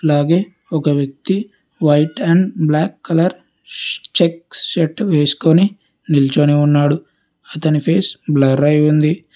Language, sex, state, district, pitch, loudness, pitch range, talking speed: Telugu, male, Telangana, Hyderabad, 155 Hz, -15 LUFS, 150-175 Hz, 110 wpm